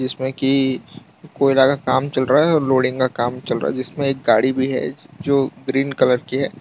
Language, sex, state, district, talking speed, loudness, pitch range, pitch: Hindi, male, Gujarat, Valsad, 225 wpm, -19 LUFS, 130-140 Hz, 135 Hz